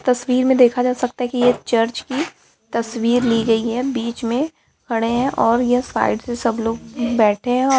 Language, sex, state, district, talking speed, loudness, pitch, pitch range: Hindi, female, Bihar, Lakhisarai, 225 wpm, -19 LUFS, 245 Hz, 230-250 Hz